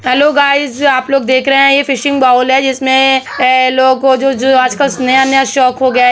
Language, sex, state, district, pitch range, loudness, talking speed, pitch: Hindi, female, Bihar, Sitamarhi, 255-275 Hz, -10 LUFS, 205 wpm, 265 Hz